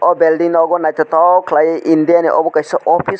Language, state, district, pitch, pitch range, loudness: Kokborok, Tripura, West Tripura, 165 Hz, 160-170 Hz, -13 LUFS